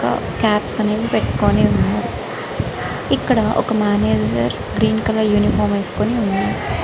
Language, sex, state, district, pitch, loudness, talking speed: Telugu, female, Andhra Pradesh, Srikakulam, 205 Hz, -18 LUFS, 115 wpm